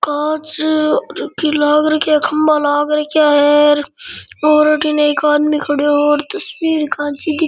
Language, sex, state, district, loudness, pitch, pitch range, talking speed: Rajasthani, male, Rajasthan, Churu, -14 LUFS, 300 Hz, 295-310 Hz, 135 wpm